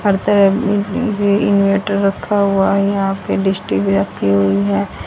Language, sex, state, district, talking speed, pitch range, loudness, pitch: Hindi, female, Haryana, Rohtak, 155 wpm, 160-205 Hz, -15 LUFS, 195 Hz